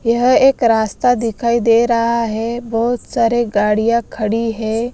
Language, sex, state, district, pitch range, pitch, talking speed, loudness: Hindi, female, Bihar, West Champaran, 225-235 Hz, 230 Hz, 145 wpm, -15 LUFS